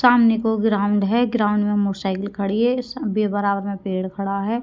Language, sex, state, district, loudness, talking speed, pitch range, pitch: Hindi, female, Haryana, Rohtak, -21 LUFS, 180 wpm, 200-225 Hz, 205 Hz